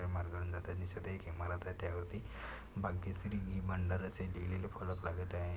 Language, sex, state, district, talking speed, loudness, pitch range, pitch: Marathi, male, Maharashtra, Chandrapur, 130 wpm, -42 LUFS, 90-95 Hz, 90 Hz